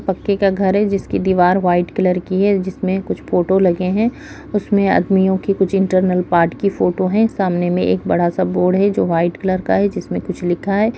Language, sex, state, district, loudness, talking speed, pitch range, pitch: Kumaoni, female, Uttarakhand, Uttarkashi, -17 LUFS, 215 wpm, 180-195 Hz, 190 Hz